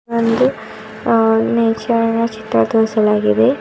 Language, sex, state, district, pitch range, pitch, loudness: Kannada, female, Karnataka, Bidar, 220-230 Hz, 225 Hz, -15 LUFS